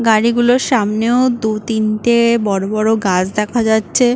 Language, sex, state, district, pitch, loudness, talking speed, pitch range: Bengali, female, West Bengal, Paschim Medinipur, 220 Hz, -15 LUFS, 130 wpm, 215-240 Hz